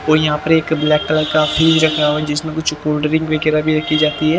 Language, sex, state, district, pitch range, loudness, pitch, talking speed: Hindi, male, Haryana, Jhajjar, 150-160 Hz, -15 LUFS, 155 Hz, 275 wpm